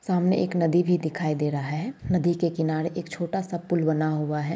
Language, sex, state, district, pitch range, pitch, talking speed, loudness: Hindi, male, Bihar, Bhagalpur, 155-175 Hz, 170 Hz, 235 wpm, -26 LUFS